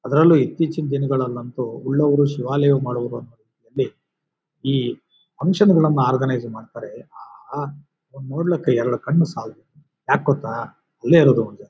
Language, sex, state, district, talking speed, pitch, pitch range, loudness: Kannada, male, Karnataka, Bijapur, 115 wpm, 140 Hz, 125-155 Hz, -20 LUFS